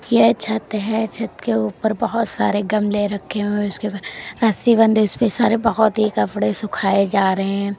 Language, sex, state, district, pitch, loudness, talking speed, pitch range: Hindi, female, Uttar Pradesh, Lalitpur, 215 Hz, -19 LUFS, 190 wpm, 200-225 Hz